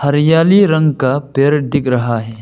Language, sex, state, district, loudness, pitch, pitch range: Hindi, male, Arunachal Pradesh, Lower Dibang Valley, -13 LUFS, 145 Hz, 130-155 Hz